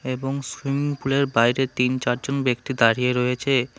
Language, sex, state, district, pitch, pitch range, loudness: Bengali, male, West Bengal, Alipurduar, 130 Hz, 125-140 Hz, -22 LUFS